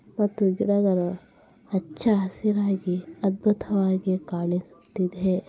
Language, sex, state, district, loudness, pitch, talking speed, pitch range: Kannada, female, Karnataka, Bellary, -25 LUFS, 190 Hz, 75 wpm, 180-205 Hz